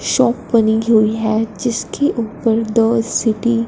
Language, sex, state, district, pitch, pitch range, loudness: Hindi, female, Punjab, Fazilka, 225 Hz, 220-235 Hz, -16 LUFS